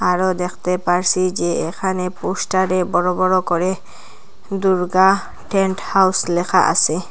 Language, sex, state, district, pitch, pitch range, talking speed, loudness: Bengali, female, Assam, Hailakandi, 185 Hz, 180-190 Hz, 120 wpm, -18 LUFS